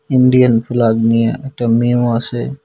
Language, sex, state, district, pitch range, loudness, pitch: Bengali, male, West Bengal, Cooch Behar, 115-130 Hz, -14 LUFS, 120 Hz